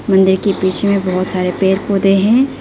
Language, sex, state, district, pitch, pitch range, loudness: Hindi, female, Arunachal Pradesh, Lower Dibang Valley, 195 Hz, 185-200 Hz, -14 LUFS